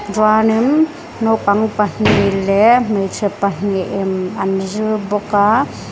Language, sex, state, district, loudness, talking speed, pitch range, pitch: Mizo, female, Mizoram, Aizawl, -15 LUFS, 100 wpm, 195-220 Hz, 205 Hz